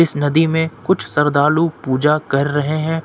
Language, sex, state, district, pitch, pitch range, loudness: Hindi, male, Jharkhand, Ranchi, 155 Hz, 145-160 Hz, -17 LUFS